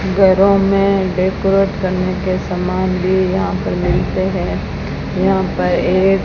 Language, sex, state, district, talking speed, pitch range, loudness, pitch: Hindi, female, Rajasthan, Bikaner, 145 wpm, 185-195 Hz, -16 LUFS, 190 Hz